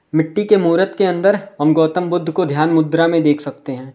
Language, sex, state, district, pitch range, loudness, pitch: Hindi, male, Uttar Pradesh, Lalitpur, 155-185 Hz, -16 LUFS, 165 Hz